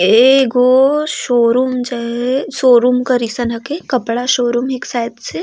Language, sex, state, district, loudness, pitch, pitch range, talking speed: Sadri, female, Chhattisgarh, Jashpur, -14 LUFS, 250 Hz, 240-260 Hz, 130 wpm